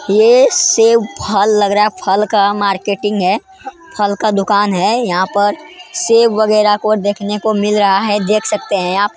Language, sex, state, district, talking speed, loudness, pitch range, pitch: Hindi, female, Bihar, Jamui, 185 wpm, -13 LUFS, 200-225 Hz, 210 Hz